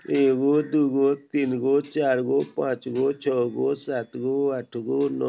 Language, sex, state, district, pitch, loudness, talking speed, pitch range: Bajjika, male, Bihar, Vaishali, 135 Hz, -24 LUFS, 190 wpm, 125-140 Hz